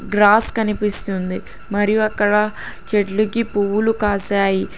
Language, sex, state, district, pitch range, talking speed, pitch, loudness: Telugu, female, Telangana, Hyderabad, 200-215 Hz, 90 wpm, 205 Hz, -18 LUFS